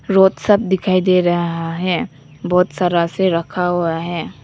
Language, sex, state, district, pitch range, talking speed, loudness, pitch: Hindi, female, Nagaland, Kohima, 170-190 Hz, 160 wpm, -17 LUFS, 180 Hz